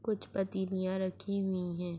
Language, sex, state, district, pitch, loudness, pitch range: Urdu, female, Andhra Pradesh, Anantapur, 190 Hz, -35 LUFS, 185-195 Hz